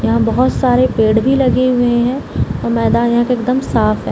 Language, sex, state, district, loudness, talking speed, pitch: Hindi, female, Bihar, Samastipur, -14 LUFS, 220 wpm, 240 Hz